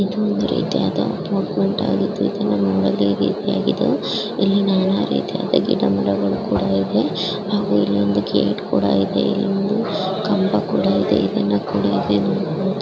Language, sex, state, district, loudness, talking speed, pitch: Kannada, male, Karnataka, Mysore, -19 LUFS, 80 wpm, 100 Hz